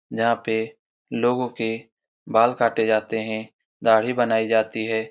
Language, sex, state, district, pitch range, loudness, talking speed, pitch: Hindi, male, Bihar, Saran, 110-115 Hz, -22 LUFS, 140 wpm, 115 Hz